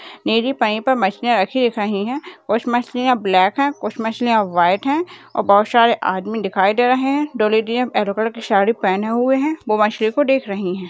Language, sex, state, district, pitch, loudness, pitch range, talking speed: Hindi, female, Rajasthan, Nagaur, 225 Hz, -18 LUFS, 205-255 Hz, 215 wpm